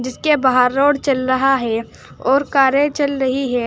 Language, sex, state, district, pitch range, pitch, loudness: Hindi, female, Uttar Pradesh, Saharanpur, 255-280 Hz, 270 Hz, -16 LUFS